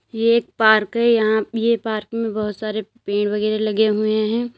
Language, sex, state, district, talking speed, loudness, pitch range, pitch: Hindi, female, Uttar Pradesh, Lalitpur, 210 wpm, -19 LUFS, 215-230 Hz, 220 Hz